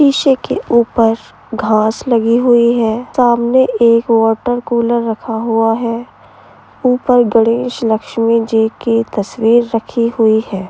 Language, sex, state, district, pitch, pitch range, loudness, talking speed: Hindi, female, Uttar Pradesh, Varanasi, 230 Hz, 225-240 Hz, -13 LUFS, 130 wpm